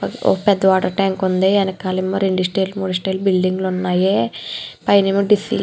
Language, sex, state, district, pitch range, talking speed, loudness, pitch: Telugu, female, Andhra Pradesh, Chittoor, 185-195 Hz, 150 wpm, -18 LUFS, 190 Hz